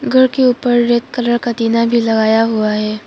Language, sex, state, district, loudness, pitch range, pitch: Hindi, female, Arunachal Pradesh, Papum Pare, -14 LUFS, 225-245 Hz, 235 Hz